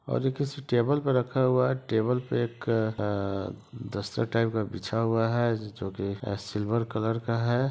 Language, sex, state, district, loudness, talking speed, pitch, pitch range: Hindi, male, Bihar, East Champaran, -28 LUFS, 185 wpm, 115 Hz, 105-125 Hz